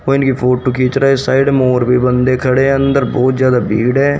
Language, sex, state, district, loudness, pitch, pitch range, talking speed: Hindi, male, Haryana, Rohtak, -13 LUFS, 130 Hz, 125-135 Hz, 245 wpm